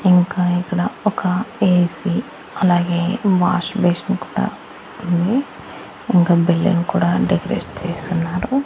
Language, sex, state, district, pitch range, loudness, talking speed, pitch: Telugu, male, Andhra Pradesh, Annamaya, 175-195 Hz, -18 LUFS, 95 wpm, 180 Hz